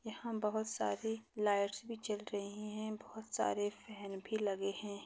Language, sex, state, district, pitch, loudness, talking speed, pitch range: Hindi, female, Maharashtra, Pune, 210 Hz, -40 LUFS, 165 wpm, 205-220 Hz